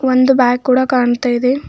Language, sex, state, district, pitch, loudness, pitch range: Kannada, female, Karnataka, Bidar, 255 Hz, -13 LUFS, 245-260 Hz